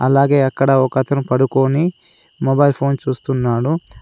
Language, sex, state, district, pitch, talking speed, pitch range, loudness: Telugu, male, Telangana, Adilabad, 135 Hz, 105 wpm, 130-140 Hz, -16 LUFS